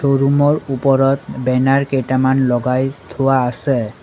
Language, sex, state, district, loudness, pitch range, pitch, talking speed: Assamese, male, Assam, Sonitpur, -16 LUFS, 130-135 Hz, 135 Hz, 105 wpm